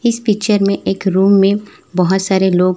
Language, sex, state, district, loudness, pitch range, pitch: Hindi, female, Chhattisgarh, Raipur, -14 LUFS, 190-205 Hz, 195 Hz